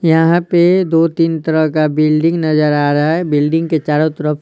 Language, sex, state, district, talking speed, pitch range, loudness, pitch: Hindi, male, Bihar, Patna, 190 wpm, 155-165 Hz, -13 LUFS, 160 Hz